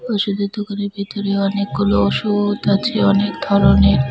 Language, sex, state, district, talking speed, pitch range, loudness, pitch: Bengali, female, West Bengal, Cooch Behar, 115 wpm, 195-205 Hz, -17 LUFS, 200 Hz